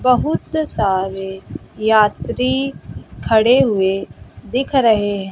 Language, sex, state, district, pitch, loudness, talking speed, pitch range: Hindi, female, Bihar, West Champaran, 220 Hz, -17 LUFS, 90 wpm, 195-255 Hz